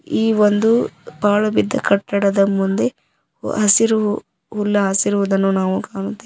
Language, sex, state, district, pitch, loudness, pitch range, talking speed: Kannada, female, Karnataka, Koppal, 205 Hz, -17 LUFS, 195-215 Hz, 95 wpm